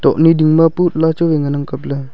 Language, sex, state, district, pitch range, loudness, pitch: Wancho, male, Arunachal Pradesh, Longding, 140-165 Hz, -14 LUFS, 160 Hz